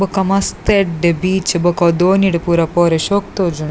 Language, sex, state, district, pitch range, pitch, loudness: Tulu, female, Karnataka, Dakshina Kannada, 170-195 Hz, 175 Hz, -15 LUFS